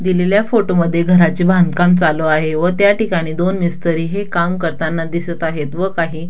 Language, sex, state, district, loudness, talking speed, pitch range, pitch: Marathi, female, Maharashtra, Dhule, -15 LUFS, 180 wpm, 165-185 Hz, 170 Hz